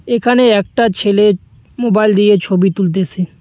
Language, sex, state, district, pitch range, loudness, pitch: Bengali, male, West Bengal, Cooch Behar, 190-230 Hz, -13 LUFS, 205 Hz